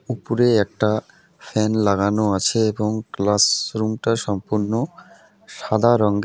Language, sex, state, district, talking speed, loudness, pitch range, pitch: Bengali, male, West Bengal, Alipurduar, 105 wpm, -20 LUFS, 105-115 Hz, 110 Hz